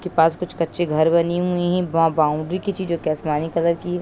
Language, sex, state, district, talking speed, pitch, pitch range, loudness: Hindi, female, Bihar, Saran, 240 wpm, 170 Hz, 160-180 Hz, -21 LUFS